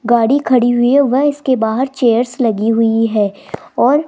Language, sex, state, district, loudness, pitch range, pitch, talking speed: Hindi, female, Rajasthan, Jaipur, -14 LUFS, 225-265 Hz, 240 Hz, 175 wpm